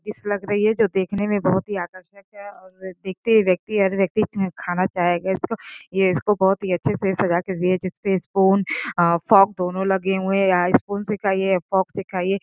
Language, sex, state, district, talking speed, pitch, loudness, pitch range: Hindi, female, Uttar Pradesh, Gorakhpur, 230 wpm, 190 Hz, -21 LUFS, 185-200 Hz